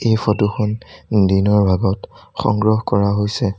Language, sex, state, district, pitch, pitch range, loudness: Assamese, male, Assam, Sonitpur, 105 Hz, 100-110 Hz, -17 LUFS